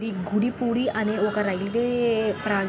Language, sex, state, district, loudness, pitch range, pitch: Telugu, female, Andhra Pradesh, Krishna, -24 LUFS, 205-235 Hz, 215 Hz